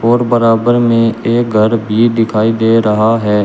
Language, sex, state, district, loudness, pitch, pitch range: Hindi, male, Uttar Pradesh, Shamli, -11 LUFS, 115 Hz, 110-115 Hz